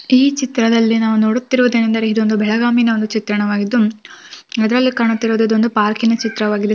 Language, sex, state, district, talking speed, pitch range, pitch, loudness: Kannada, female, Karnataka, Belgaum, 125 wpm, 220-235 Hz, 225 Hz, -15 LUFS